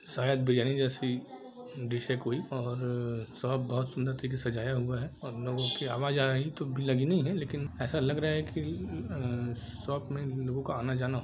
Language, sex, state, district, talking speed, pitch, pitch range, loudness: Hindi, male, Jharkhand, Jamtara, 195 wpm, 130 Hz, 125-140 Hz, -33 LUFS